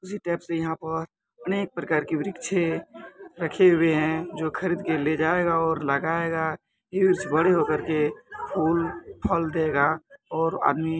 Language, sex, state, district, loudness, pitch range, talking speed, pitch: Hindi, male, Bihar, Muzaffarpur, -25 LUFS, 160-180 Hz, 165 wpm, 165 Hz